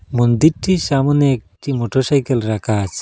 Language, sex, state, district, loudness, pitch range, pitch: Bengali, male, Assam, Hailakandi, -17 LUFS, 110-140 Hz, 130 Hz